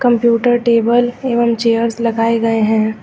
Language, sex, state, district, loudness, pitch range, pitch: Hindi, female, Uttar Pradesh, Lucknow, -14 LUFS, 230-240 Hz, 230 Hz